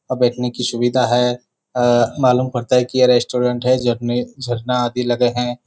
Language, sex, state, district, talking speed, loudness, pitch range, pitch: Hindi, male, Bihar, Kishanganj, 190 wpm, -17 LUFS, 120-125 Hz, 125 Hz